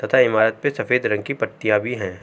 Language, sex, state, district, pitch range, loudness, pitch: Hindi, male, Uttar Pradesh, Jalaun, 105-125 Hz, -20 LUFS, 110 Hz